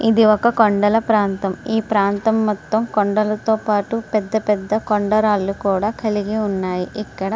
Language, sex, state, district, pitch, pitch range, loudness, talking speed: Telugu, female, Andhra Pradesh, Srikakulam, 215 Hz, 200-220 Hz, -18 LUFS, 140 wpm